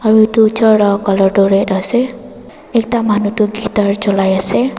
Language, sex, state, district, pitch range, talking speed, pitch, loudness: Nagamese, female, Nagaland, Dimapur, 195-225 Hz, 175 wpm, 210 Hz, -13 LUFS